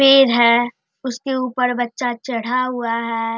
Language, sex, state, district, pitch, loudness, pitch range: Hindi, male, Bihar, Darbhanga, 245 Hz, -18 LUFS, 235-255 Hz